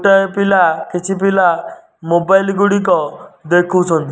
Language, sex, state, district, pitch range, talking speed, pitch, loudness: Odia, male, Odisha, Nuapada, 170-195 Hz, 100 wpm, 185 Hz, -14 LUFS